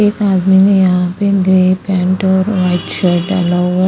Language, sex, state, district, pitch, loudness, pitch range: Hindi, female, Chandigarh, Chandigarh, 185 Hz, -12 LUFS, 180-190 Hz